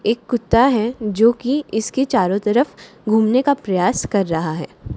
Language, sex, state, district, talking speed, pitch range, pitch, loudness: Hindi, female, Haryana, Charkhi Dadri, 170 wpm, 205-250 Hz, 225 Hz, -18 LUFS